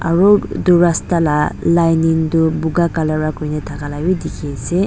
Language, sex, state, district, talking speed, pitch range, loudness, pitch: Nagamese, female, Nagaland, Dimapur, 170 wpm, 155-170 Hz, -16 LUFS, 160 Hz